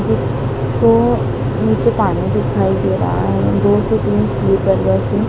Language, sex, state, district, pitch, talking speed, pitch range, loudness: Hindi, female, Madhya Pradesh, Dhar, 110 Hz, 145 wpm, 100-120 Hz, -15 LUFS